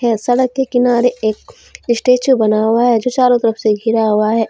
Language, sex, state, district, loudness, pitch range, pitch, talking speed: Hindi, female, Jharkhand, Deoghar, -14 LUFS, 220-250 Hz, 235 Hz, 200 wpm